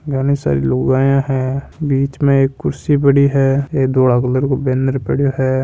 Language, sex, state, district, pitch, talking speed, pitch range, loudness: Hindi, male, Rajasthan, Nagaur, 135 Hz, 180 wpm, 130-140 Hz, -15 LUFS